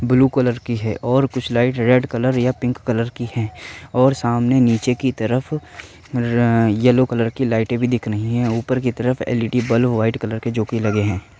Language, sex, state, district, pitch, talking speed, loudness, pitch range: Hindi, male, Uttar Pradesh, Varanasi, 120 Hz, 205 wpm, -19 LUFS, 115-125 Hz